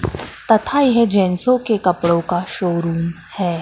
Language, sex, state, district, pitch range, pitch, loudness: Hindi, female, Madhya Pradesh, Katni, 170-220 Hz, 180 Hz, -17 LUFS